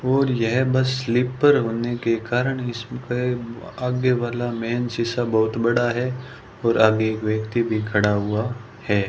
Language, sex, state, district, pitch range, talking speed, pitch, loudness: Hindi, male, Rajasthan, Bikaner, 115-125 Hz, 145 wpm, 120 Hz, -22 LUFS